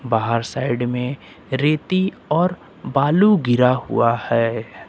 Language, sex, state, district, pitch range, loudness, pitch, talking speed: Hindi, male, Uttar Pradesh, Lucknow, 120-155 Hz, -19 LUFS, 130 Hz, 110 wpm